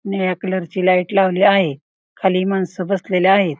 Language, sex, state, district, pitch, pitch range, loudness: Marathi, female, Maharashtra, Pune, 185 Hz, 185-195 Hz, -17 LUFS